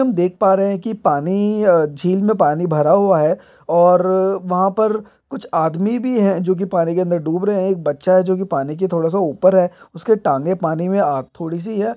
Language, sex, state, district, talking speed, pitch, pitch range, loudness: Hindi, male, Bihar, Saran, 235 wpm, 185 Hz, 170-200 Hz, -17 LUFS